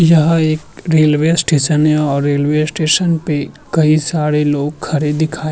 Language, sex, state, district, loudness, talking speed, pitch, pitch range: Hindi, male, Uttar Pradesh, Muzaffarnagar, -14 LUFS, 165 wpm, 155 Hz, 150-160 Hz